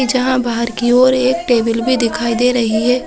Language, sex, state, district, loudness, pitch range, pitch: Chhattisgarhi, female, Chhattisgarh, Sarguja, -14 LUFS, 235-255 Hz, 245 Hz